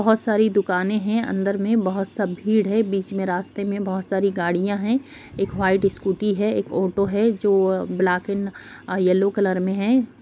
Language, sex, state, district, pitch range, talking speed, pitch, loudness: Hindi, female, Bihar, Jahanabad, 190-215 Hz, 190 wpm, 200 Hz, -22 LUFS